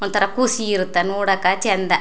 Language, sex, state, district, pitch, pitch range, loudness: Kannada, female, Karnataka, Chamarajanagar, 195 Hz, 185-205 Hz, -19 LUFS